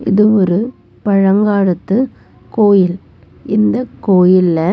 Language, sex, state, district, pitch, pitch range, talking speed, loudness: Tamil, female, Tamil Nadu, Nilgiris, 195 Hz, 185-210 Hz, 75 wpm, -13 LUFS